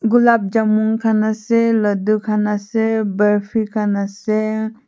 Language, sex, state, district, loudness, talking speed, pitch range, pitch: Nagamese, female, Nagaland, Kohima, -17 LUFS, 125 wpm, 210-225 Hz, 215 Hz